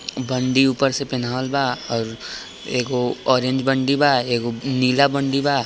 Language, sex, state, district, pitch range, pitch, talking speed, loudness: Hindi, male, Bihar, East Champaran, 125-135 Hz, 130 Hz, 160 wpm, -20 LUFS